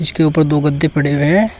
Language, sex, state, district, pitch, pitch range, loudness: Hindi, male, Uttar Pradesh, Shamli, 155 Hz, 150-160 Hz, -14 LUFS